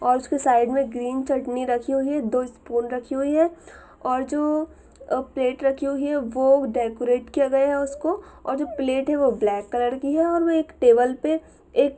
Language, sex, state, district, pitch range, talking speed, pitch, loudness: Hindi, female, Jharkhand, Sahebganj, 250-295 Hz, 200 wpm, 270 Hz, -23 LUFS